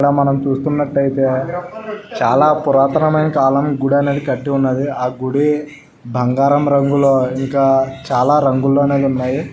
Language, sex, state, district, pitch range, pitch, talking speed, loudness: Telugu, male, Karnataka, Bellary, 135-145 Hz, 140 Hz, 115 wpm, -15 LUFS